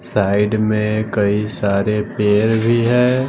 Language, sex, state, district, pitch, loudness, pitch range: Hindi, male, Bihar, West Champaran, 105 Hz, -17 LUFS, 105-115 Hz